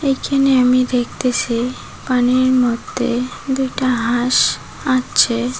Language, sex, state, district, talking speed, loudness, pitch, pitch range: Bengali, female, West Bengal, Cooch Behar, 85 wpm, -17 LUFS, 250 Hz, 245-255 Hz